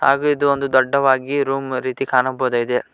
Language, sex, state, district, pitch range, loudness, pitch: Kannada, male, Karnataka, Koppal, 130-140 Hz, -18 LUFS, 135 Hz